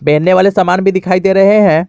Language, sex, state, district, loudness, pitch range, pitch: Hindi, male, Jharkhand, Garhwa, -10 LUFS, 180-195 Hz, 190 Hz